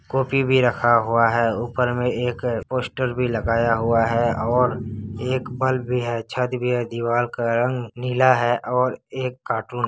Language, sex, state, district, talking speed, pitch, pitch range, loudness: Hindi, male, Bihar, Kishanganj, 180 wpm, 120 Hz, 115-125 Hz, -21 LUFS